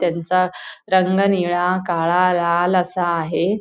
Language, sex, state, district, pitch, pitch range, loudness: Marathi, female, Goa, North and South Goa, 180 Hz, 175-185 Hz, -18 LUFS